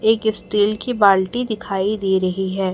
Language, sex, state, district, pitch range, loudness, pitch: Hindi, male, Chhattisgarh, Raipur, 190-220 Hz, -19 LUFS, 205 Hz